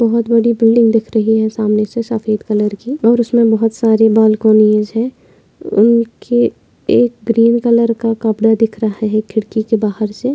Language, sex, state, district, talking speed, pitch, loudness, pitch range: Hindi, female, Maharashtra, Pune, 175 wpm, 225 Hz, -13 LUFS, 215-235 Hz